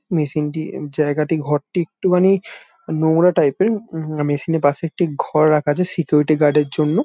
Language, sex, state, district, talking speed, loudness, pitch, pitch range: Bengali, male, West Bengal, Jalpaiguri, 160 wpm, -18 LUFS, 155 Hz, 150-175 Hz